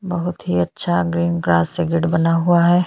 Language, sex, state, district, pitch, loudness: Hindi, female, Chhattisgarh, Sukma, 165 Hz, -18 LUFS